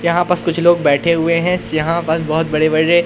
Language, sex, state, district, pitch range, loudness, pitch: Hindi, male, Madhya Pradesh, Katni, 160-170 Hz, -15 LUFS, 170 Hz